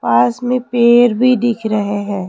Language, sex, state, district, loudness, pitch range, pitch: Hindi, female, Rajasthan, Jaipur, -14 LUFS, 205-245 Hz, 235 Hz